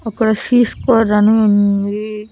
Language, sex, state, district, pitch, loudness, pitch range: Telugu, female, Andhra Pradesh, Annamaya, 215 Hz, -14 LUFS, 210-225 Hz